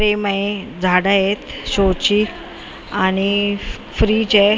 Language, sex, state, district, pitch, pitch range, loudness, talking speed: Marathi, female, Maharashtra, Mumbai Suburban, 205 Hz, 195-210 Hz, -17 LUFS, 105 wpm